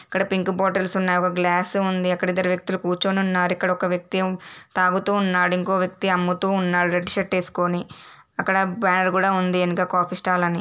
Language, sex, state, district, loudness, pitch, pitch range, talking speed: Telugu, female, Andhra Pradesh, Srikakulam, -22 LUFS, 185 Hz, 180-190 Hz, 185 wpm